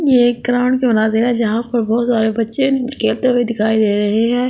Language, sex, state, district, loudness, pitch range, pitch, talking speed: Hindi, female, Delhi, New Delhi, -15 LUFS, 220-250 Hz, 235 Hz, 225 wpm